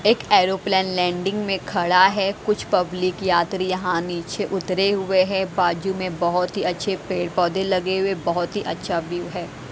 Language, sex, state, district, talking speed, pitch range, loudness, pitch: Hindi, female, Haryana, Jhajjar, 165 wpm, 175-190 Hz, -21 LUFS, 185 Hz